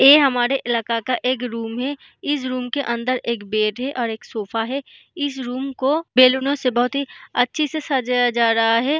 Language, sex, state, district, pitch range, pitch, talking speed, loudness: Hindi, female, Bihar, East Champaran, 235-275 Hz, 255 Hz, 205 wpm, -20 LUFS